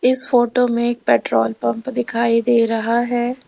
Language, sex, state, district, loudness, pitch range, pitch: Hindi, female, Uttar Pradesh, Lalitpur, -18 LUFS, 225-245 Hz, 235 Hz